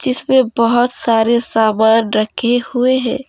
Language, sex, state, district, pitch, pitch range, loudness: Hindi, female, Jharkhand, Deoghar, 235 Hz, 225-250 Hz, -14 LUFS